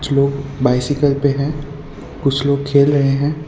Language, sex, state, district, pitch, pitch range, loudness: Hindi, male, Gujarat, Valsad, 140 Hz, 140-145 Hz, -16 LUFS